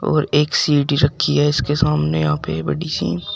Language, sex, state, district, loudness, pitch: Hindi, male, Uttar Pradesh, Shamli, -18 LUFS, 140 Hz